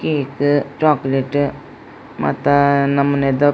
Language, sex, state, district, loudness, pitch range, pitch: Tulu, female, Karnataka, Dakshina Kannada, -17 LUFS, 140-145 Hz, 140 Hz